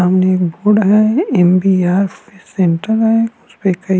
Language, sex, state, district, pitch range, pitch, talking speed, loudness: Hindi, male, Uttarakhand, Tehri Garhwal, 180-215 Hz, 195 Hz, 150 wpm, -14 LUFS